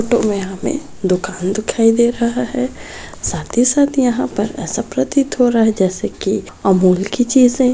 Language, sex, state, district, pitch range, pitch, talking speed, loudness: Hindi, female, Bihar, Sitamarhi, 195-255 Hz, 235 Hz, 185 wpm, -16 LUFS